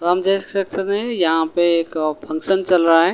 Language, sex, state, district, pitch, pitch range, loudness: Hindi, male, Delhi, New Delhi, 175 Hz, 165-195 Hz, -18 LUFS